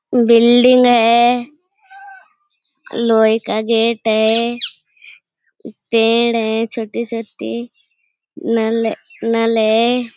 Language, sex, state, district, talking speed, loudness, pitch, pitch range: Hindi, female, Uttar Pradesh, Budaun, 70 wpm, -15 LUFS, 230 Hz, 225-250 Hz